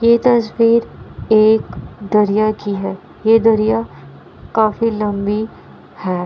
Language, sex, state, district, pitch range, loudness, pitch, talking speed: Hindi, female, Bihar, Kishanganj, 205-225 Hz, -16 LUFS, 215 Hz, 115 wpm